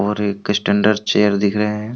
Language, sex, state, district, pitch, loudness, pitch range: Hindi, male, Jharkhand, Deoghar, 105 Hz, -17 LUFS, 100-105 Hz